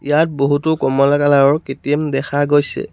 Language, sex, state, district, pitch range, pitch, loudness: Assamese, male, Assam, Sonitpur, 140-150 Hz, 145 Hz, -15 LUFS